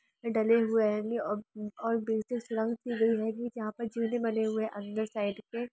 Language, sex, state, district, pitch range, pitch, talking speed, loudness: Hindi, female, Andhra Pradesh, Chittoor, 215-230 Hz, 225 Hz, 190 wpm, -31 LUFS